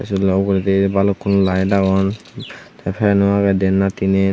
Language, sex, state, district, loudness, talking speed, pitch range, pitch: Chakma, male, Tripura, Unakoti, -16 LUFS, 165 wpm, 95-100 Hz, 95 Hz